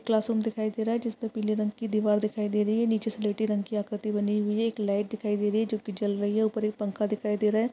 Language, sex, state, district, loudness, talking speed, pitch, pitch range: Hindi, female, Uttar Pradesh, Varanasi, -28 LUFS, 320 wpm, 215 Hz, 210-220 Hz